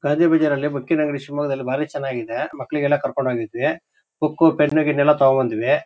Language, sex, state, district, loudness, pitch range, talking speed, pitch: Kannada, male, Karnataka, Shimoga, -20 LUFS, 135-155 Hz, 145 wpm, 145 Hz